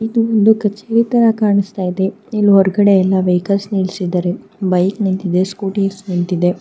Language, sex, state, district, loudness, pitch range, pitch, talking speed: Kannada, female, Karnataka, Mysore, -15 LUFS, 185-210 Hz, 195 Hz, 125 wpm